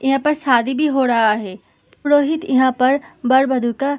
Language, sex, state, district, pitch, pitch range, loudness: Hindi, female, Uttar Pradesh, Muzaffarnagar, 265 Hz, 245-285 Hz, -17 LUFS